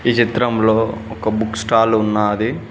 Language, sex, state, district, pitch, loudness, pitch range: Telugu, male, Telangana, Mahabubabad, 110 Hz, -17 LUFS, 110-115 Hz